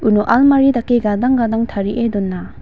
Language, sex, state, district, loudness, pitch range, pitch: Garo, female, Meghalaya, West Garo Hills, -15 LUFS, 210-245 Hz, 230 Hz